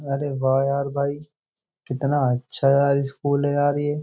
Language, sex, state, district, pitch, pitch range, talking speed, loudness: Hindi, male, Uttar Pradesh, Jyotiba Phule Nagar, 140 Hz, 140-145 Hz, 165 wpm, -22 LUFS